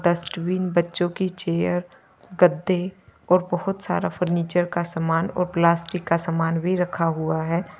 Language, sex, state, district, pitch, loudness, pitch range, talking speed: Hindi, female, Uttar Pradesh, Lalitpur, 175 Hz, -23 LUFS, 170-180 Hz, 145 wpm